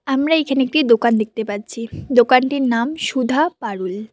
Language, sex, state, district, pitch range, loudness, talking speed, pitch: Bengali, female, West Bengal, Cooch Behar, 225-275 Hz, -17 LUFS, 145 wpm, 245 Hz